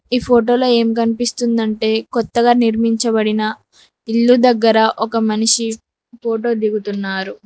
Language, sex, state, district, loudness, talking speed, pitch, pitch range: Telugu, female, Telangana, Mahabubabad, -15 LUFS, 105 wpm, 230 Hz, 220-235 Hz